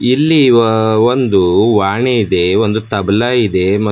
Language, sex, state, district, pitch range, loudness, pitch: Kannada, male, Karnataka, Bidar, 100-120 Hz, -12 LUFS, 110 Hz